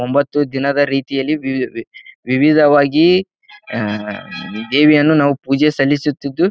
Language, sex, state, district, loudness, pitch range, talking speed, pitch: Kannada, male, Karnataka, Bijapur, -15 LUFS, 135-150 Hz, 90 wpm, 140 Hz